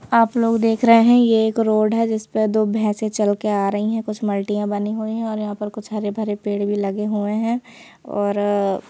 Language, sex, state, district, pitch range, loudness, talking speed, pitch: Hindi, female, Madhya Pradesh, Bhopal, 205-225 Hz, -20 LUFS, 245 wpm, 215 Hz